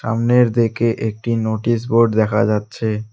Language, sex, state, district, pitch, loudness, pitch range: Bengali, male, West Bengal, Alipurduar, 115 Hz, -17 LUFS, 110-115 Hz